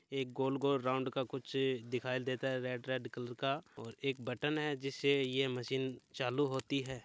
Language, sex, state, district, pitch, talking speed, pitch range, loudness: Hindi, male, Rajasthan, Churu, 130 Hz, 195 wpm, 125-135 Hz, -37 LUFS